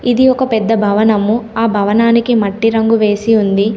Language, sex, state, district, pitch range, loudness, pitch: Telugu, female, Telangana, Komaram Bheem, 210-230 Hz, -12 LUFS, 225 Hz